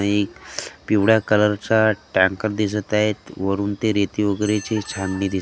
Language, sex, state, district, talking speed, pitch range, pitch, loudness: Marathi, male, Maharashtra, Gondia, 145 wpm, 100-105 Hz, 105 Hz, -21 LUFS